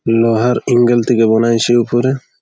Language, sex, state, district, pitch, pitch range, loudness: Bengali, male, West Bengal, Malda, 120 Hz, 115-120 Hz, -13 LUFS